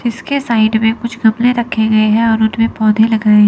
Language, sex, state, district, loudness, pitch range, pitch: Hindi, female, Chandigarh, Chandigarh, -13 LUFS, 220-235 Hz, 225 Hz